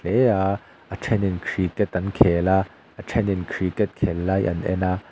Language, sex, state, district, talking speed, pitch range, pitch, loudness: Mizo, male, Mizoram, Aizawl, 210 wpm, 90-100 Hz, 95 Hz, -23 LUFS